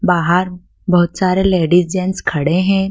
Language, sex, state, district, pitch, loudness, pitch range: Hindi, female, Madhya Pradesh, Dhar, 180 Hz, -15 LUFS, 175-190 Hz